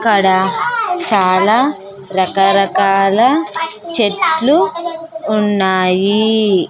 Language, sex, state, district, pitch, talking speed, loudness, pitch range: Telugu, female, Andhra Pradesh, Sri Satya Sai, 210 Hz, 45 wpm, -13 LUFS, 195-300 Hz